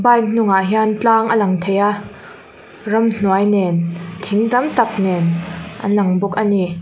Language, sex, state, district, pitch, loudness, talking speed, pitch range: Mizo, female, Mizoram, Aizawl, 205 Hz, -16 LUFS, 165 wpm, 185-220 Hz